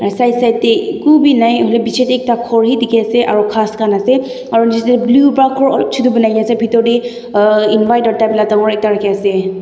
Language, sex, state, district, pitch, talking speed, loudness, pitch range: Nagamese, female, Nagaland, Dimapur, 230 Hz, 195 wpm, -12 LUFS, 215-245 Hz